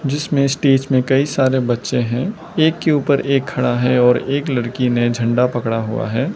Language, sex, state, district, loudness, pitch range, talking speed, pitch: Hindi, male, Arunachal Pradesh, Lower Dibang Valley, -17 LUFS, 120-140 Hz, 200 wpm, 130 Hz